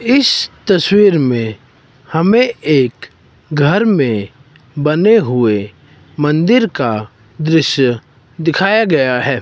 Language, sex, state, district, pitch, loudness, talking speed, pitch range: Hindi, male, Himachal Pradesh, Shimla, 145 Hz, -13 LUFS, 95 wpm, 125-195 Hz